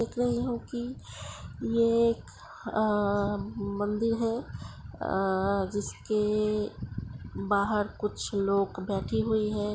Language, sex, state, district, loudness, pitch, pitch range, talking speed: Hindi, female, Uttar Pradesh, Hamirpur, -29 LUFS, 210 Hz, 200-230 Hz, 105 wpm